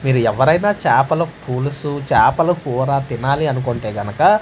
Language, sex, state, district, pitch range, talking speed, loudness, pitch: Telugu, male, Andhra Pradesh, Manyam, 125-160 Hz, 120 wpm, -17 LUFS, 140 Hz